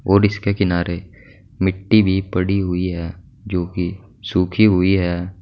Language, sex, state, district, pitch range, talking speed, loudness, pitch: Hindi, male, Uttar Pradesh, Saharanpur, 90-100 Hz, 135 wpm, -19 LUFS, 95 Hz